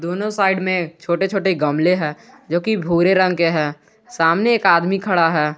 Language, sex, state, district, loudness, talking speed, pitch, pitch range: Hindi, male, Jharkhand, Garhwa, -18 LUFS, 185 wpm, 175 Hz, 165-190 Hz